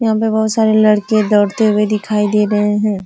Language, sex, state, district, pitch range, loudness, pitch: Hindi, female, Uttar Pradesh, Ghazipur, 210-220 Hz, -14 LUFS, 210 Hz